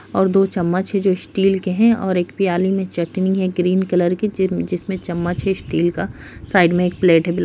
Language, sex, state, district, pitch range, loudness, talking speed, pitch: Hindi, female, Uttar Pradesh, Hamirpur, 175-195 Hz, -18 LUFS, 240 wpm, 185 Hz